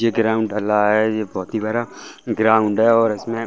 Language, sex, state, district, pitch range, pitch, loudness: Hindi, male, Bihar, Saran, 105-115 Hz, 110 Hz, -18 LUFS